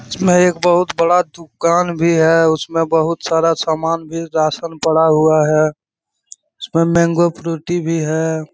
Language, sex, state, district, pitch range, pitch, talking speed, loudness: Hindi, male, Jharkhand, Sahebganj, 160-170 Hz, 165 Hz, 160 wpm, -15 LUFS